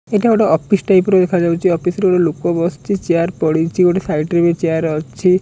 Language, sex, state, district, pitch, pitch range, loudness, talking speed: Odia, male, Odisha, Khordha, 175 Hz, 165-190 Hz, -15 LUFS, 220 wpm